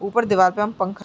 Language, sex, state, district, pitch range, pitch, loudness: Hindi, female, Bihar, Muzaffarpur, 190-210 Hz, 200 Hz, -19 LUFS